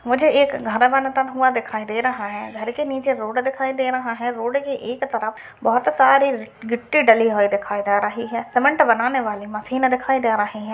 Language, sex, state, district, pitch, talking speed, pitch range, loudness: Hindi, female, Uttar Pradesh, Hamirpur, 245 Hz, 195 wpm, 220-265 Hz, -20 LUFS